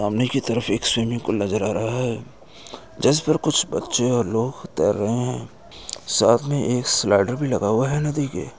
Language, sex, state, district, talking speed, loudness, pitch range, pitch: Hindi, male, Uttar Pradesh, Muzaffarnagar, 210 wpm, -21 LUFS, 115-140 Hz, 125 Hz